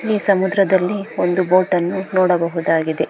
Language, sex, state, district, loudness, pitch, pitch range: Kannada, female, Karnataka, Bangalore, -17 LUFS, 185 Hz, 175-195 Hz